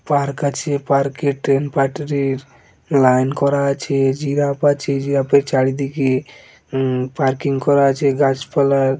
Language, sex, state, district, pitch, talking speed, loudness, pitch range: Bengali, male, West Bengal, Dakshin Dinajpur, 140 Hz, 105 wpm, -18 LUFS, 135-140 Hz